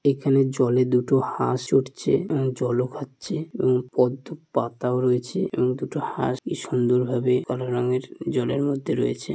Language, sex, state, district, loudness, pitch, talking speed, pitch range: Bengali, male, West Bengal, Malda, -24 LUFS, 125 Hz, 150 wpm, 125-135 Hz